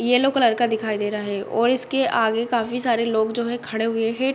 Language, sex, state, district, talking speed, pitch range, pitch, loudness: Hindi, female, Uttar Pradesh, Deoria, 250 wpm, 220-245 Hz, 230 Hz, -22 LUFS